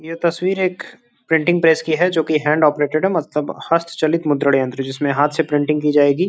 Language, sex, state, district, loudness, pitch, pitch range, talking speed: Hindi, male, Uttar Pradesh, Gorakhpur, -17 LUFS, 155 Hz, 145-170 Hz, 220 wpm